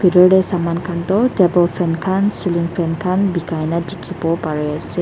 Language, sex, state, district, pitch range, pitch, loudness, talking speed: Nagamese, female, Nagaland, Dimapur, 170-185 Hz, 175 Hz, -17 LUFS, 180 wpm